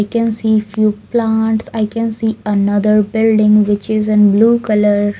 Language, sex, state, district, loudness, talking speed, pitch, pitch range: English, female, Haryana, Jhajjar, -14 LUFS, 175 wpm, 215 Hz, 210-225 Hz